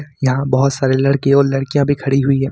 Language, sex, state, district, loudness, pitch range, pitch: Hindi, male, Jharkhand, Ranchi, -15 LUFS, 135-140 Hz, 135 Hz